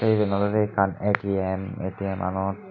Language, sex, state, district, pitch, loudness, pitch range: Chakma, male, Tripura, Unakoti, 100 Hz, -25 LUFS, 95-105 Hz